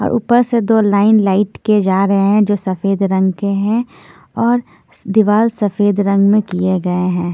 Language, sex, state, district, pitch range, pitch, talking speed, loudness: Hindi, female, Punjab, Pathankot, 195-220 Hz, 205 Hz, 190 wpm, -14 LUFS